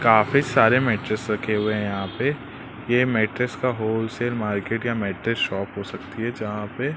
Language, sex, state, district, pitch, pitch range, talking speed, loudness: Hindi, male, Madhya Pradesh, Katni, 110 Hz, 105-125 Hz, 180 wpm, -23 LUFS